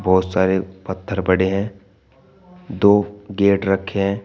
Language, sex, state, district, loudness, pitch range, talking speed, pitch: Hindi, male, Uttar Pradesh, Shamli, -19 LUFS, 95-100 Hz, 125 wpm, 100 Hz